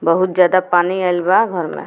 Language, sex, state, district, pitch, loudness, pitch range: Bhojpuri, female, Bihar, Muzaffarpur, 180 Hz, -15 LUFS, 175-185 Hz